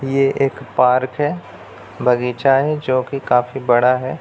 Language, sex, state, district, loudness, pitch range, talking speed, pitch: Hindi, male, Bihar, Jamui, -17 LUFS, 125-135 Hz, 155 wpm, 130 Hz